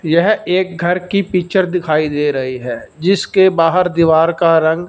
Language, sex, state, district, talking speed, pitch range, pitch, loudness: Hindi, male, Punjab, Fazilka, 170 wpm, 160-185 Hz, 170 Hz, -14 LUFS